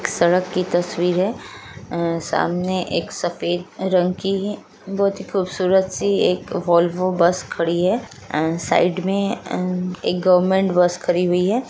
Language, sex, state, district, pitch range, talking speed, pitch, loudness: Hindi, female, Bihar, Gaya, 175-190 Hz, 150 wpm, 180 Hz, -20 LUFS